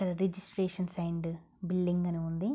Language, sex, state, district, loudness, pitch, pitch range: Telugu, female, Andhra Pradesh, Guntur, -34 LUFS, 180 Hz, 170-190 Hz